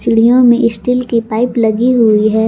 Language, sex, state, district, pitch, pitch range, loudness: Hindi, female, Jharkhand, Garhwa, 230 Hz, 220-245 Hz, -11 LUFS